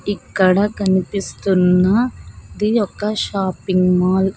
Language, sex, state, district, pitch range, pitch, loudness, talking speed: Telugu, female, Andhra Pradesh, Sri Satya Sai, 185-205 Hz, 190 Hz, -17 LUFS, 95 wpm